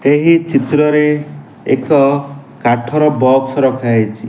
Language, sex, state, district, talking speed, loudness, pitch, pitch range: Odia, male, Odisha, Nuapada, 100 wpm, -13 LUFS, 140 Hz, 130-150 Hz